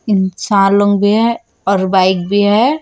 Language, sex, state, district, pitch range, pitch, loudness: Hindi, female, Chhattisgarh, Raipur, 190-210 Hz, 200 Hz, -13 LUFS